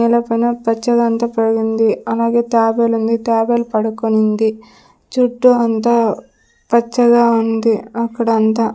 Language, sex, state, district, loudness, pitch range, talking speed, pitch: Telugu, female, Andhra Pradesh, Sri Satya Sai, -15 LUFS, 225-235 Hz, 105 wpm, 230 Hz